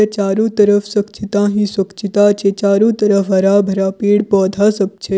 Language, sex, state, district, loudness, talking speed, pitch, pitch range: Maithili, female, Bihar, Purnia, -14 LUFS, 140 wpm, 205 Hz, 195-210 Hz